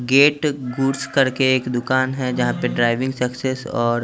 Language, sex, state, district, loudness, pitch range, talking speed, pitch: Hindi, male, Chandigarh, Chandigarh, -20 LUFS, 125-135 Hz, 165 wpm, 130 Hz